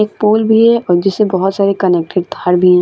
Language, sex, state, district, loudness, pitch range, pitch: Hindi, female, Bihar, Vaishali, -12 LUFS, 180-215 Hz, 195 Hz